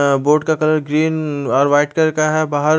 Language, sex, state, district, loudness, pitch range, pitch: Hindi, male, Chandigarh, Chandigarh, -16 LUFS, 145-155 Hz, 155 Hz